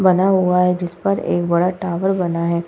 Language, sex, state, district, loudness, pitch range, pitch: Hindi, female, Uttar Pradesh, Budaun, -18 LUFS, 175-185 Hz, 180 Hz